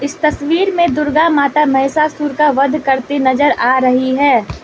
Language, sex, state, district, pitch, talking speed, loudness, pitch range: Hindi, female, Manipur, Imphal West, 290 Hz, 155 wpm, -13 LUFS, 270-305 Hz